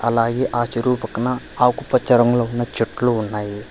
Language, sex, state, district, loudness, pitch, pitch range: Telugu, male, Telangana, Hyderabad, -19 LUFS, 120 Hz, 115-125 Hz